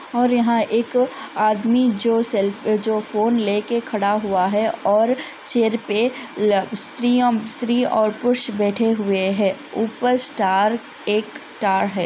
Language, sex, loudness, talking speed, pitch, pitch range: Hindi, female, -20 LUFS, 135 wpm, 225 Hz, 210-245 Hz